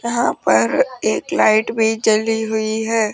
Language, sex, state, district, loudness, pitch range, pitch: Hindi, female, Rajasthan, Jaipur, -17 LUFS, 220-225 Hz, 220 Hz